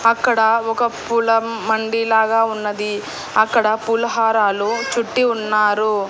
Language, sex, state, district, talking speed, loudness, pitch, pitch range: Telugu, female, Andhra Pradesh, Annamaya, 110 wpm, -18 LUFS, 225 Hz, 215-230 Hz